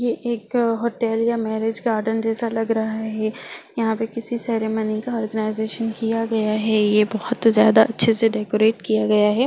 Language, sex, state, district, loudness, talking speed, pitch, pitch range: Hindi, female, Bihar, Jahanabad, -21 LUFS, 175 wpm, 225 Hz, 220-230 Hz